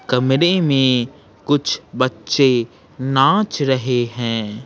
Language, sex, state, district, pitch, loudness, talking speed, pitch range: Hindi, male, Bihar, Patna, 130 Hz, -17 LUFS, 90 wpm, 120-140 Hz